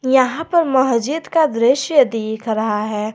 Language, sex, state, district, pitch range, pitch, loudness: Hindi, female, Jharkhand, Garhwa, 220-300 Hz, 255 Hz, -17 LUFS